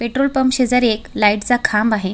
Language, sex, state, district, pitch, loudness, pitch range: Marathi, female, Maharashtra, Solapur, 235 Hz, -16 LUFS, 210-255 Hz